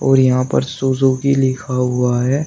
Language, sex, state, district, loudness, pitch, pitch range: Hindi, male, Uttar Pradesh, Shamli, -16 LUFS, 130 Hz, 125-135 Hz